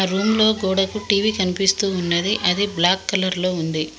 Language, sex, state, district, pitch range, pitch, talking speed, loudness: Telugu, female, Telangana, Mahabubabad, 180-205 Hz, 190 Hz, 180 wpm, -19 LUFS